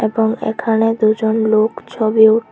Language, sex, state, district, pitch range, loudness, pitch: Bengali, female, Tripura, Unakoti, 220-225 Hz, -15 LUFS, 220 Hz